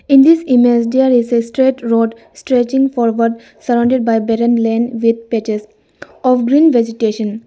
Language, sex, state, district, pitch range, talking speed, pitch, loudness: English, female, Arunachal Pradesh, Lower Dibang Valley, 230-255 Hz, 150 wpm, 235 Hz, -13 LUFS